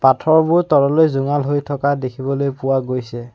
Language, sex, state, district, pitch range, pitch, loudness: Assamese, male, Assam, Sonitpur, 130-145 Hz, 140 Hz, -17 LUFS